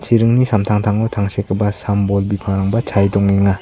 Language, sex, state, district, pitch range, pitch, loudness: Garo, male, Meghalaya, South Garo Hills, 100-105 Hz, 100 Hz, -16 LUFS